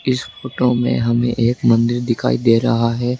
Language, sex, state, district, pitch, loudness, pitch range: Hindi, male, Rajasthan, Jaipur, 120 Hz, -17 LUFS, 115-125 Hz